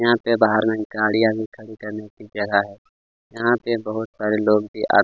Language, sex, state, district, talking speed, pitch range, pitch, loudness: Hindi, male, Chhattisgarh, Kabirdham, 225 wpm, 105-110 Hz, 110 Hz, -21 LUFS